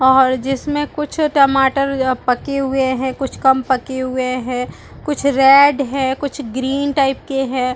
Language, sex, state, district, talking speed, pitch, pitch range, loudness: Hindi, female, Chhattisgarh, Balrampur, 170 wpm, 270 Hz, 260-275 Hz, -16 LUFS